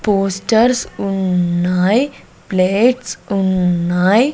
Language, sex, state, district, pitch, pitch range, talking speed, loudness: Telugu, female, Andhra Pradesh, Sri Satya Sai, 195 Hz, 180-230 Hz, 55 wpm, -16 LUFS